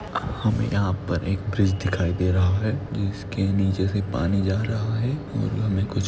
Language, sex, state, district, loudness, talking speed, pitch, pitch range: Hindi, male, Maharashtra, Nagpur, -24 LUFS, 195 wpm, 100 Hz, 95-110 Hz